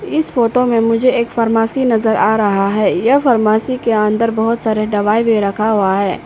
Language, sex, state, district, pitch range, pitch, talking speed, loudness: Hindi, female, Arunachal Pradesh, Papum Pare, 215-235 Hz, 225 Hz, 200 wpm, -14 LUFS